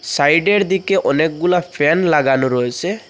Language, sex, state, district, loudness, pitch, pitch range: Bengali, male, Assam, Hailakandi, -16 LUFS, 175 Hz, 145-190 Hz